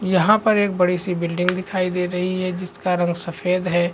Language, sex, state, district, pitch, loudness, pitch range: Hindi, male, Chhattisgarh, Raigarh, 180 Hz, -21 LUFS, 180-185 Hz